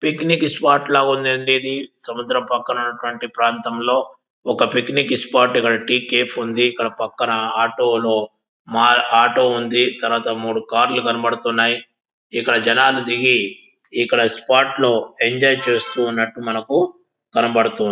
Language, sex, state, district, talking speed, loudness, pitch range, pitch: Telugu, male, Andhra Pradesh, Visakhapatnam, 125 wpm, -18 LUFS, 115-130 Hz, 120 Hz